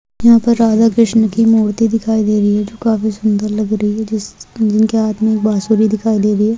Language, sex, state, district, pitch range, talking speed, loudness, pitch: Hindi, female, Rajasthan, Churu, 210-225 Hz, 220 wpm, -14 LUFS, 220 Hz